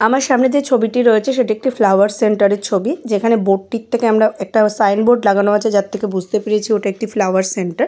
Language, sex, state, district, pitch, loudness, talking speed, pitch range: Bengali, female, West Bengal, Jalpaiguri, 215 Hz, -15 LUFS, 230 wpm, 200-230 Hz